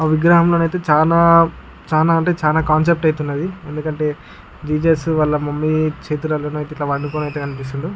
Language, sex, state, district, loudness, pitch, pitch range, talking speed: Telugu, male, Andhra Pradesh, Guntur, -17 LUFS, 155 Hz, 150-165 Hz, 130 wpm